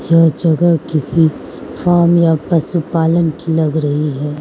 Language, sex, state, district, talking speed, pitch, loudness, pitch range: Hindi, female, Mizoram, Aizawl, 135 wpm, 165 Hz, -14 LUFS, 155-170 Hz